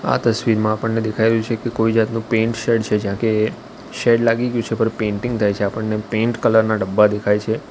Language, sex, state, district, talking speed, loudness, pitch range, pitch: Gujarati, male, Gujarat, Valsad, 225 wpm, -19 LUFS, 110-115 Hz, 110 Hz